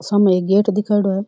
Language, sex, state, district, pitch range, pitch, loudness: Rajasthani, female, Rajasthan, Churu, 195-210 Hz, 205 Hz, -16 LUFS